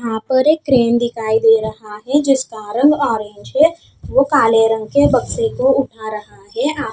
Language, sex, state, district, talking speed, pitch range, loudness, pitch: Hindi, female, Haryana, Charkhi Dadri, 190 wpm, 220-280 Hz, -15 LUFS, 240 Hz